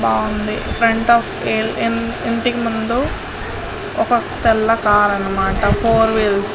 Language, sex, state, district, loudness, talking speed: Telugu, female, Andhra Pradesh, Guntur, -17 LUFS, 100 wpm